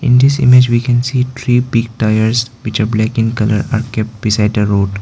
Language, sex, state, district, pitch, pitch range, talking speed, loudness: English, male, Arunachal Pradesh, Lower Dibang Valley, 115 Hz, 110-125 Hz, 225 wpm, -13 LUFS